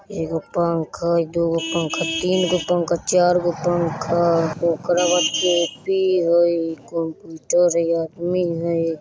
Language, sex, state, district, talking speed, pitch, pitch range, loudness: Bajjika, male, Bihar, Vaishali, 120 wpm, 170 Hz, 165-175 Hz, -20 LUFS